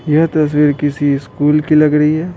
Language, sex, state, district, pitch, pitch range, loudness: Hindi, male, Bihar, Patna, 150 Hz, 145-155 Hz, -13 LUFS